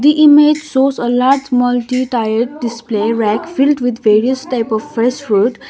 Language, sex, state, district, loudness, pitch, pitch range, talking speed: English, female, Sikkim, Gangtok, -14 LUFS, 245 Hz, 230-275 Hz, 170 wpm